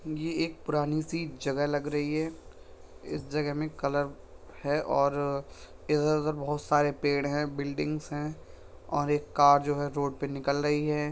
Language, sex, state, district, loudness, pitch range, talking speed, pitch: Hindi, male, Uttar Pradesh, Budaun, -30 LUFS, 145-150 Hz, 180 wpm, 145 Hz